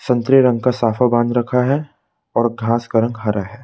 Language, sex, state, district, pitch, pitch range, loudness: Hindi, male, Madhya Pradesh, Bhopal, 120 Hz, 115-125 Hz, -17 LUFS